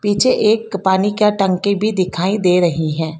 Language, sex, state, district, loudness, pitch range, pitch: Hindi, female, Karnataka, Bangalore, -16 LUFS, 180-210 Hz, 195 Hz